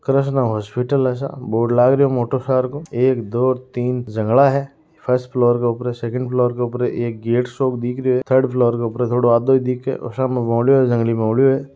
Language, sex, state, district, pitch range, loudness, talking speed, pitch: Marwari, male, Rajasthan, Nagaur, 120-130 Hz, -18 LUFS, 160 wpm, 125 Hz